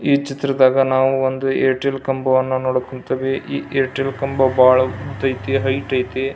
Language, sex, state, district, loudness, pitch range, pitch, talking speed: Kannada, male, Karnataka, Belgaum, -18 LUFS, 130-135 Hz, 130 Hz, 150 wpm